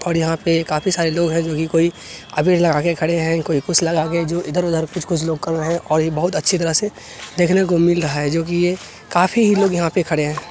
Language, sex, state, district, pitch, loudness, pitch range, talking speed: Hindi, male, Bihar, Araria, 170 Hz, -18 LUFS, 160-175 Hz, 265 wpm